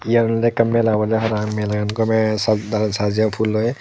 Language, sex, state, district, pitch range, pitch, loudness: Chakma, male, Tripura, Dhalai, 105-115 Hz, 110 Hz, -19 LUFS